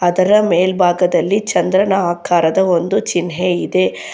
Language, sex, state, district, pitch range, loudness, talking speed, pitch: Kannada, female, Karnataka, Bangalore, 175-190 Hz, -15 LUFS, 100 wpm, 180 Hz